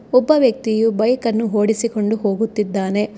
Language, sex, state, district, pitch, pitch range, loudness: Kannada, female, Karnataka, Bangalore, 225 Hz, 210-230 Hz, -18 LUFS